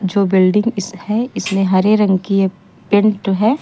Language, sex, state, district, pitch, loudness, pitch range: Hindi, female, Uttar Pradesh, Lucknow, 195 Hz, -15 LUFS, 190-210 Hz